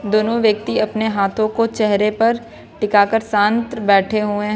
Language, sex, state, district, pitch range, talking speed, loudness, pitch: Hindi, female, Jharkhand, Ranchi, 205-225 Hz, 170 wpm, -17 LUFS, 215 Hz